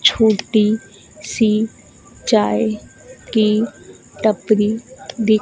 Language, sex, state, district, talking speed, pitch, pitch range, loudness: Hindi, female, Madhya Pradesh, Dhar, 65 wpm, 215 Hz, 210-220 Hz, -18 LUFS